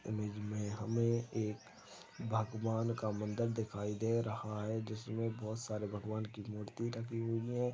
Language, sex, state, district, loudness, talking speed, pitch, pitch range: Hindi, male, Chhattisgarh, Balrampur, -39 LUFS, 155 wpm, 110 Hz, 105-115 Hz